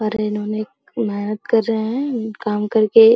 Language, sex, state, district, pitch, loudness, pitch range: Hindi, female, Bihar, Araria, 220 Hz, -20 LUFS, 215-225 Hz